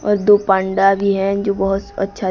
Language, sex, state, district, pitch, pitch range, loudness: Hindi, female, Odisha, Sambalpur, 195 Hz, 195-200 Hz, -16 LUFS